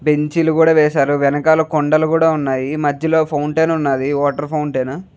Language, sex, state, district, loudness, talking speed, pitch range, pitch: Telugu, male, Andhra Pradesh, Chittoor, -16 LUFS, 150 wpm, 145-160 Hz, 150 Hz